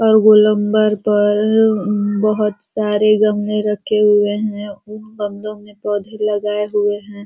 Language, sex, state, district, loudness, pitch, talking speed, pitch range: Hindi, female, Uttar Pradesh, Ghazipur, -16 LUFS, 210 Hz, 130 wpm, 205-215 Hz